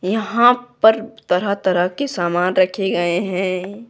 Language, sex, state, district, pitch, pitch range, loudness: Hindi, male, Jharkhand, Deoghar, 190 Hz, 180-220 Hz, -18 LUFS